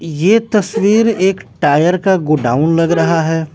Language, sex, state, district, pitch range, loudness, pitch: Hindi, male, Bihar, West Champaran, 160-200 Hz, -13 LUFS, 170 Hz